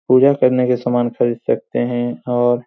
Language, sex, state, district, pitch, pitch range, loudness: Hindi, male, Bihar, Supaul, 120 Hz, 120-125 Hz, -17 LUFS